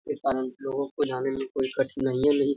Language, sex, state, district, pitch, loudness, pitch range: Hindi, male, Bihar, Lakhisarai, 135 Hz, -28 LUFS, 130-140 Hz